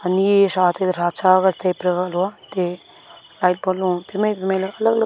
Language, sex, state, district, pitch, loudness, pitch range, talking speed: Wancho, female, Arunachal Pradesh, Longding, 185 Hz, -19 LUFS, 180-195 Hz, 140 wpm